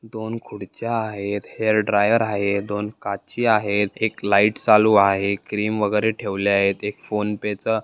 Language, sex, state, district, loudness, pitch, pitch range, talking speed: Marathi, male, Maharashtra, Dhule, -21 LUFS, 105 Hz, 100-110 Hz, 145 wpm